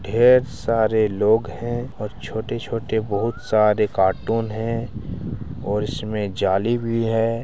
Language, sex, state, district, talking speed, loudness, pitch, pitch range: Hindi, male, Bihar, Araria, 130 wpm, -22 LUFS, 110 Hz, 105-115 Hz